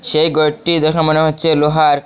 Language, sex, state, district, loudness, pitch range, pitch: Bengali, male, Assam, Hailakandi, -13 LUFS, 155-160 Hz, 155 Hz